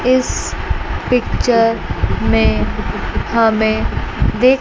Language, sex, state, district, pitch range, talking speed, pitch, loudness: Hindi, female, Chandigarh, Chandigarh, 225-250 Hz, 50 wpm, 235 Hz, -16 LUFS